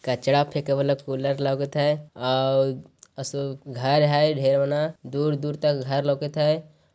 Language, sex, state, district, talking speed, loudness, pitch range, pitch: Magahi, male, Bihar, Jahanabad, 140 wpm, -24 LUFS, 135-150 Hz, 140 Hz